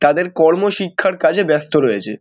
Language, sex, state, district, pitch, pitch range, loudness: Bengali, male, West Bengal, Dakshin Dinajpur, 165 Hz, 150-190 Hz, -16 LUFS